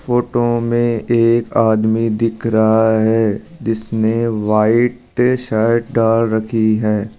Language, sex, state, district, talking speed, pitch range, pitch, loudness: Hindi, male, Rajasthan, Jaipur, 110 wpm, 110-120 Hz, 115 Hz, -15 LUFS